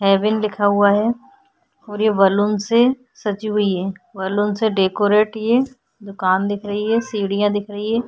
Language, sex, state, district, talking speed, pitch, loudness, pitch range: Hindi, female, Bihar, Vaishali, 170 wpm, 210 Hz, -19 LUFS, 200-230 Hz